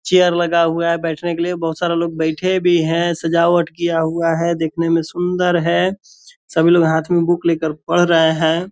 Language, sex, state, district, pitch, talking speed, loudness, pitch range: Hindi, male, Bihar, Purnia, 170 Hz, 215 wpm, -17 LUFS, 165-175 Hz